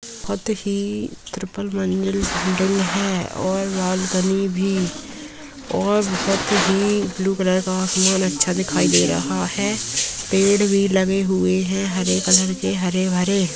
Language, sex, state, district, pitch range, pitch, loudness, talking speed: Hindi, female, Uttarakhand, Tehri Garhwal, 185-200 Hz, 190 Hz, -19 LUFS, 135 wpm